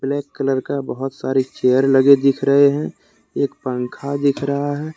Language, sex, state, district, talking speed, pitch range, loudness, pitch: Hindi, male, Jharkhand, Deoghar, 180 wpm, 135-140 Hz, -18 LUFS, 140 Hz